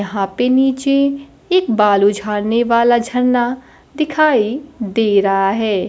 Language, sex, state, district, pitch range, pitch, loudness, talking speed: Hindi, female, Bihar, Kaimur, 210-270 Hz, 235 Hz, -15 LUFS, 120 wpm